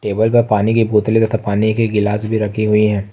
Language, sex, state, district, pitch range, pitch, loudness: Hindi, male, Jharkhand, Ranchi, 105-110 Hz, 110 Hz, -15 LUFS